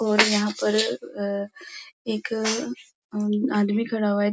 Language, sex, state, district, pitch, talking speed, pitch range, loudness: Hindi, female, Uttar Pradesh, Muzaffarnagar, 215 Hz, 110 wpm, 205-225 Hz, -24 LUFS